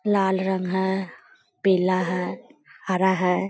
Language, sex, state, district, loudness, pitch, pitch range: Hindi, female, Bihar, Sitamarhi, -23 LUFS, 190 Hz, 185-200 Hz